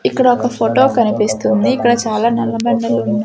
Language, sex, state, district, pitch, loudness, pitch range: Telugu, female, Andhra Pradesh, Sri Satya Sai, 235 Hz, -14 LUFS, 215-245 Hz